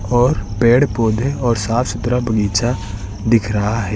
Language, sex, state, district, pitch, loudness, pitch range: Hindi, male, Uttar Pradesh, Lucknow, 115 Hz, -17 LUFS, 105-120 Hz